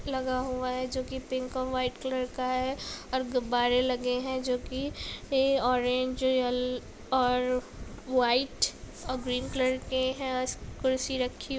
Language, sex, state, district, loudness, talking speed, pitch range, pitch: Hindi, female, Chhattisgarh, Raigarh, -30 LUFS, 150 wpm, 250-260 Hz, 255 Hz